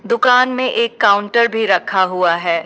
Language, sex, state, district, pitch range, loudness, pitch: Hindi, female, Uttar Pradesh, Shamli, 180-235 Hz, -14 LUFS, 215 Hz